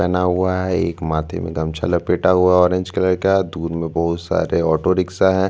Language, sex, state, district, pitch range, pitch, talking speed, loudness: Hindi, male, Chhattisgarh, Bastar, 85-95 Hz, 90 Hz, 220 wpm, -18 LUFS